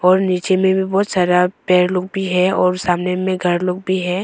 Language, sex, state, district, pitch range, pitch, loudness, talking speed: Hindi, female, Arunachal Pradesh, Longding, 180-190 Hz, 185 Hz, -17 LUFS, 240 wpm